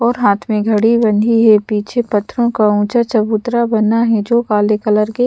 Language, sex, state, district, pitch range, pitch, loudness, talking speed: Hindi, female, Madhya Pradesh, Bhopal, 210-235 Hz, 220 Hz, -14 LUFS, 195 wpm